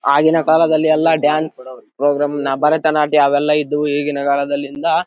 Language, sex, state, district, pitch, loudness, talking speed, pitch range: Kannada, male, Karnataka, Bellary, 150 Hz, -15 LUFS, 165 wpm, 140-155 Hz